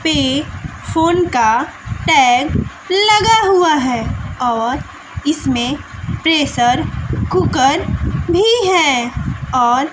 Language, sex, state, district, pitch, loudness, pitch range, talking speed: Hindi, female, Bihar, West Champaran, 310 Hz, -15 LUFS, 255-370 Hz, 85 wpm